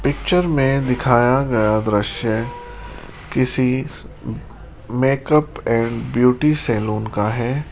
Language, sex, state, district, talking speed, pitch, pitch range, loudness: Hindi, male, Rajasthan, Jaipur, 95 wpm, 125 Hz, 110-135 Hz, -18 LUFS